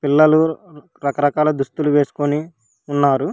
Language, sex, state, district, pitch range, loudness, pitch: Telugu, female, Telangana, Hyderabad, 140-155 Hz, -18 LUFS, 145 Hz